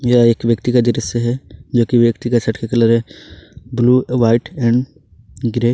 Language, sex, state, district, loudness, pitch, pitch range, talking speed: Hindi, male, Jharkhand, Ranchi, -16 LUFS, 120 Hz, 115-125 Hz, 200 wpm